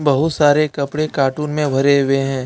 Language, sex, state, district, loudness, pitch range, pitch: Hindi, male, Jharkhand, Deoghar, -16 LUFS, 135-150 Hz, 140 Hz